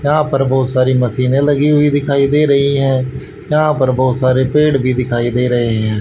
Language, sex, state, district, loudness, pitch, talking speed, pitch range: Hindi, male, Haryana, Rohtak, -14 LUFS, 135 Hz, 210 wpm, 130-145 Hz